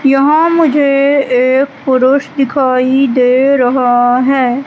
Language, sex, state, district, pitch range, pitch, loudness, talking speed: Hindi, female, Madhya Pradesh, Katni, 255-280 Hz, 270 Hz, -10 LUFS, 105 wpm